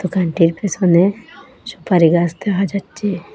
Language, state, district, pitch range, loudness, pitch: Bengali, Assam, Hailakandi, 170-200 Hz, -16 LUFS, 185 Hz